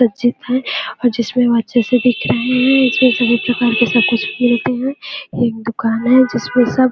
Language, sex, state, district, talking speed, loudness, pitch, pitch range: Hindi, female, Chhattisgarh, Bilaspur, 200 wpm, -15 LUFS, 245 Hz, 235-250 Hz